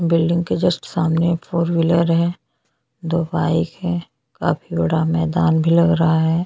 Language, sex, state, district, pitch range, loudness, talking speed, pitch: Hindi, female, Chhattisgarh, Bastar, 165-170 Hz, -19 LUFS, 55 wpm, 170 Hz